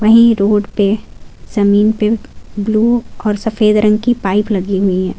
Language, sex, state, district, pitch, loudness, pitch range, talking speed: Hindi, female, Jharkhand, Garhwa, 210 Hz, -14 LUFS, 205-220 Hz, 150 wpm